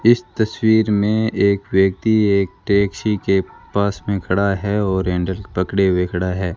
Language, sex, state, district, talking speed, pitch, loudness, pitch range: Hindi, male, Rajasthan, Bikaner, 165 wpm, 100 Hz, -18 LUFS, 95-105 Hz